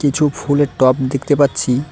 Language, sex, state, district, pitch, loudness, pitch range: Bengali, male, West Bengal, Cooch Behar, 140 Hz, -16 LUFS, 130-145 Hz